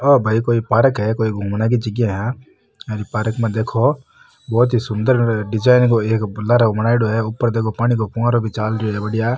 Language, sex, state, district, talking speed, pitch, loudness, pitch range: Marwari, male, Rajasthan, Nagaur, 205 wpm, 115 Hz, -18 LUFS, 110-120 Hz